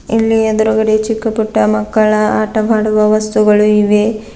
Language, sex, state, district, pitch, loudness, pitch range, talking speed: Kannada, female, Karnataka, Bidar, 215 Hz, -12 LUFS, 215-220 Hz, 95 wpm